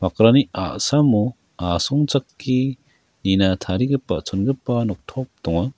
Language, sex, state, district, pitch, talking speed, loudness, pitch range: Garo, male, Meghalaya, West Garo Hills, 115 Hz, 85 wpm, -20 LUFS, 95-135 Hz